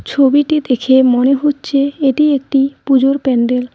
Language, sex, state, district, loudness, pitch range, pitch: Bengali, female, West Bengal, Cooch Behar, -13 LUFS, 260-285 Hz, 275 Hz